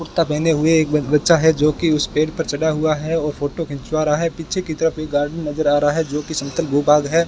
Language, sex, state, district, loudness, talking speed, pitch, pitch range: Hindi, male, Rajasthan, Bikaner, -18 LUFS, 290 wpm, 155 Hz, 150-165 Hz